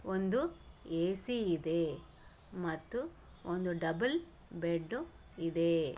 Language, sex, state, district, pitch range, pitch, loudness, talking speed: Kannada, female, Karnataka, Bellary, 165-195 Hz, 170 Hz, -36 LUFS, 80 wpm